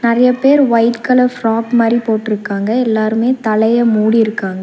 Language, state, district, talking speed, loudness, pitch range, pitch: Tamil, Tamil Nadu, Nilgiris, 130 wpm, -13 LUFS, 215-240 Hz, 230 Hz